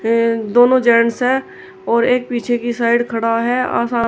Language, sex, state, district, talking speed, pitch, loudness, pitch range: Hindi, female, Uttar Pradesh, Shamli, 175 wpm, 235 Hz, -16 LUFS, 230-245 Hz